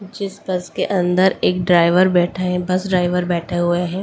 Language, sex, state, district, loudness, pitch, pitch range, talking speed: Hindi, female, Delhi, New Delhi, -18 LUFS, 180 Hz, 175-185 Hz, 195 wpm